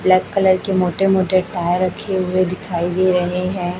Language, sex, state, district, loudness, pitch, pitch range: Hindi, female, Chhattisgarh, Raipur, -18 LUFS, 185 Hz, 180-190 Hz